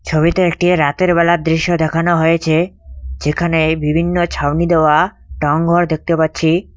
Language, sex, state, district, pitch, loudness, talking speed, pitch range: Bengali, male, West Bengal, Cooch Behar, 165 Hz, -15 LUFS, 125 wpm, 155-175 Hz